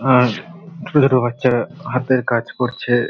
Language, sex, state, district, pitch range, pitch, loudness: Bengali, male, West Bengal, Malda, 120-150 Hz, 125 Hz, -18 LUFS